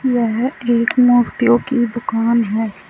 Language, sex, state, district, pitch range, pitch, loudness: Hindi, female, Uttar Pradesh, Saharanpur, 225-245 Hz, 235 Hz, -16 LUFS